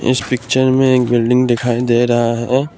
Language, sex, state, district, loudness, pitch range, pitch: Hindi, male, Assam, Kamrup Metropolitan, -14 LUFS, 120-130 Hz, 125 Hz